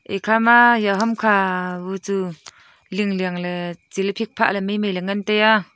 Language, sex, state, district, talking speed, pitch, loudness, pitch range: Wancho, female, Arunachal Pradesh, Longding, 145 wpm, 200 Hz, -19 LUFS, 185-215 Hz